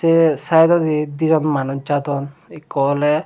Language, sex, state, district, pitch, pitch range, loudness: Chakma, male, Tripura, Dhalai, 150 Hz, 145-160 Hz, -17 LUFS